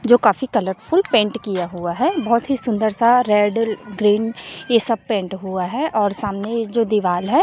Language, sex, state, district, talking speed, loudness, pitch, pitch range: Hindi, female, Chhattisgarh, Raipur, 195 wpm, -18 LUFS, 220 Hz, 200-235 Hz